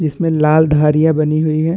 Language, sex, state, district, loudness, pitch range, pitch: Hindi, male, Chhattisgarh, Bastar, -13 LUFS, 150-160 Hz, 155 Hz